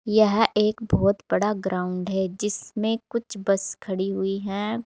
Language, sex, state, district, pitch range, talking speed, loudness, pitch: Hindi, female, Uttar Pradesh, Saharanpur, 190-215 Hz, 150 wpm, -24 LUFS, 205 Hz